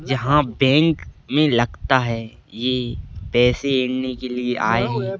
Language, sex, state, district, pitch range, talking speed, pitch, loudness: Hindi, male, Madhya Pradesh, Bhopal, 120-135 Hz, 140 wpm, 125 Hz, -20 LUFS